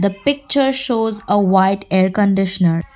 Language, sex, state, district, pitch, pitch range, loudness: English, female, Assam, Kamrup Metropolitan, 200 Hz, 190-230 Hz, -16 LUFS